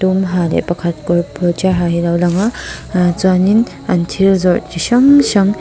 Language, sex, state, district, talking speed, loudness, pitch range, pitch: Mizo, female, Mizoram, Aizawl, 225 wpm, -14 LUFS, 175-195 Hz, 180 Hz